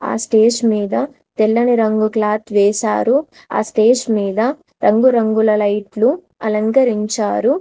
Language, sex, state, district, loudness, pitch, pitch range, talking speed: Telugu, female, Telangana, Mahabubabad, -16 LUFS, 220 Hz, 215-240 Hz, 110 wpm